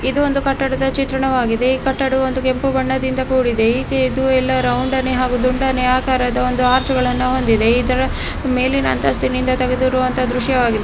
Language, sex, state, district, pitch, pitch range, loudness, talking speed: Kannada, female, Karnataka, Mysore, 260 Hz, 255-265 Hz, -17 LUFS, 135 wpm